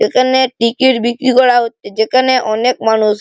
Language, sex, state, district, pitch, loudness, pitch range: Bengali, male, West Bengal, Malda, 245 Hz, -13 LUFS, 220-255 Hz